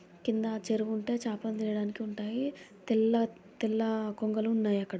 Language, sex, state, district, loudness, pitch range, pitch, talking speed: Telugu, female, Andhra Pradesh, Guntur, -32 LUFS, 210-225 Hz, 220 Hz, 130 wpm